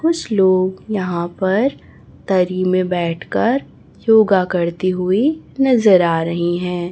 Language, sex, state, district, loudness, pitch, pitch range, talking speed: Hindi, female, Chhattisgarh, Raipur, -17 LUFS, 185 Hz, 175-220 Hz, 120 wpm